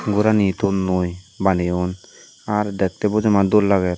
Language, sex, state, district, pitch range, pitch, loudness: Chakma, male, Tripura, Dhalai, 90-105 Hz, 100 Hz, -19 LUFS